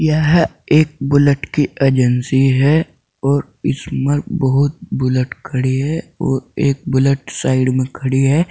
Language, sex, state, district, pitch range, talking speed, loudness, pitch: Hindi, male, Uttar Pradesh, Saharanpur, 130-150 Hz, 135 wpm, -16 LUFS, 140 Hz